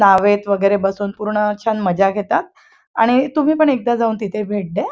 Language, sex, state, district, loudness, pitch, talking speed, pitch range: Marathi, female, Maharashtra, Chandrapur, -17 LUFS, 210 Hz, 185 wpm, 200-225 Hz